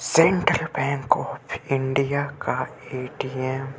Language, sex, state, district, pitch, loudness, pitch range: Hindi, female, Bihar, Vaishali, 140 Hz, -24 LUFS, 130-150 Hz